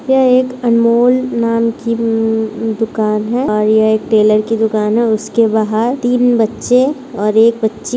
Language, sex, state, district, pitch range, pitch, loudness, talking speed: Hindi, female, Bihar, Kishanganj, 220-245 Hz, 225 Hz, -13 LUFS, 175 wpm